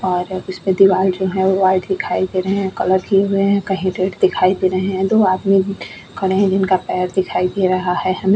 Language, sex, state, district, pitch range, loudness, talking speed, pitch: Hindi, female, Goa, North and South Goa, 185-195 Hz, -17 LUFS, 245 wpm, 190 Hz